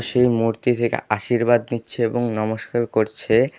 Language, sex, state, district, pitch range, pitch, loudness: Bengali, male, West Bengal, Alipurduar, 110-120 Hz, 120 Hz, -21 LUFS